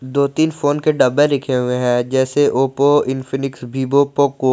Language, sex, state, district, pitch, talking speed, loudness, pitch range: Hindi, male, Jharkhand, Garhwa, 135 Hz, 185 wpm, -16 LUFS, 130-145 Hz